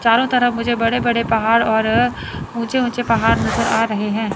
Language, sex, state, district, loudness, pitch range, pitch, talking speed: Hindi, female, Chandigarh, Chandigarh, -17 LUFS, 225-240 Hz, 230 Hz, 190 wpm